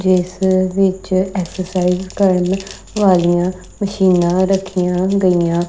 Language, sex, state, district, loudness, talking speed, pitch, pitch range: Punjabi, female, Punjab, Kapurthala, -16 LUFS, 85 wpm, 185 Hz, 180-190 Hz